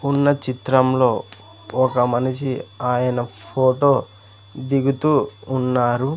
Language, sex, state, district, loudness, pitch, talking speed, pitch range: Telugu, male, Andhra Pradesh, Sri Satya Sai, -20 LUFS, 130 Hz, 80 wpm, 120-135 Hz